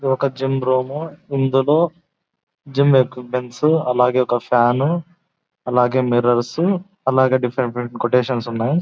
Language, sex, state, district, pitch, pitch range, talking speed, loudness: Telugu, male, Andhra Pradesh, Anantapur, 130 Hz, 125-155 Hz, 115 wpm, -18 LUFS